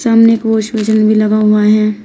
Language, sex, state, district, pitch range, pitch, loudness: Hindi, female, Uttar Pradesh, Shamli, 215-225 Hz, 215 Hz, -11 LUFS